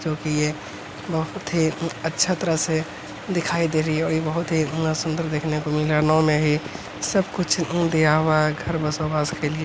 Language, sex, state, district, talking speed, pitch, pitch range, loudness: Hindi, male, Bihar, Araria, 240 wpm, 155 Hz, 150-165 Hz, -22 LUFS